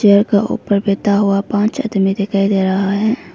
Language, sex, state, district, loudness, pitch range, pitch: Hindi, female, Arunachal Pradesh, Lower Dibang Valley, -15 LUFS, 195-205 Hz, 200 Hz